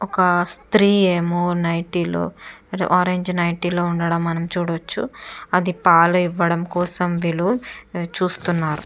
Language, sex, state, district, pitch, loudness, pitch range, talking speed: Telugu, female, Andhra Pradesh, Chittoor, 175 Hz, -20 LUFS, 170-180 Hz, 115 wpm